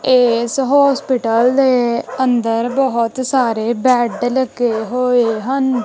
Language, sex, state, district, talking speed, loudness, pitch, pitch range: Punjabi, female, Punjab, Kapurthala, 105 wpm, -15 LUFS, 250 Hz, 235-260 Hz